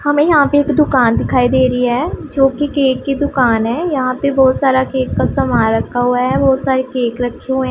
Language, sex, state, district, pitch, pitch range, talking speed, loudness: Hindi, female, Punjab, Pathankot, 260 Hz, 250-280 Hz, 225 wpm, -14 LUFS